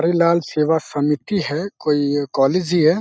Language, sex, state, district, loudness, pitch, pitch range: Hindi, male, Uttar Pradesh, Deoria, -19 LUFS, 160 Hz, 145-170 Hz